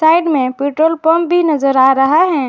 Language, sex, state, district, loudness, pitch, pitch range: Hindi, female, Jharkhand, Garhwa, -13 LUFS, 310 Hz, 270-330 Hz